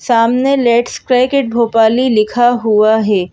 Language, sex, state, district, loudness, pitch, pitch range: Hindi, female, Madhya Pradesh, Bhopal, -12 LUFS, 235 Hz, 220-250 Hz